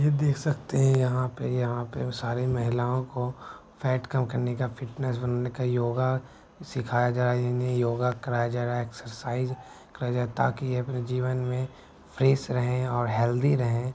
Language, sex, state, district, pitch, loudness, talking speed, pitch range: Maithili, male, Bihar, Begusarai, 125 Hz, -28 LUFS, 180 wpm, 120-130 Hz